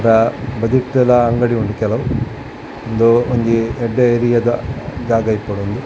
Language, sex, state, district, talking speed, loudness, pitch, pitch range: Tulu, male, Karnataka, Dakshina Kannada, 125 wpm, -16 LUFS, 120 Hz, 115-125 Hz